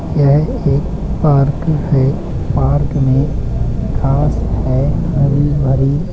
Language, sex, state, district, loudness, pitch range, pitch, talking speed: Hindi, male, Uttar Pradesh, Budaun, -15 LUFS, 135-150 Hz, 140 Hz, 110 wpm